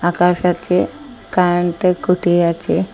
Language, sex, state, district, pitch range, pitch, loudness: Bengali, female, Assam, Hailakandi, 175-180 Hz, 180 Hz, -16 LUFS